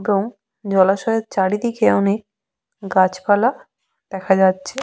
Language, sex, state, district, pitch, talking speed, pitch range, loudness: Bengali, female, West Bengal, Jhargram, 200 Hz, 85 wpm, 190-225 Hz, -18 LUFS